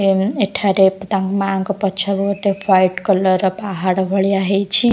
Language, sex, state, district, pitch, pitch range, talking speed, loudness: Odia, female, Odisha, Khordha, 195 Hz, 190-200 Hz, 160 wpm, -17 LUFS